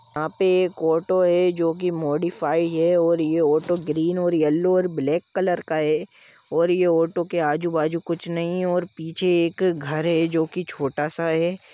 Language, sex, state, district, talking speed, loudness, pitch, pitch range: Hindi, male, Jharkhand, Jamtara, 205 wpm, -22 LUFS, 170 Hz, 160-175 Hz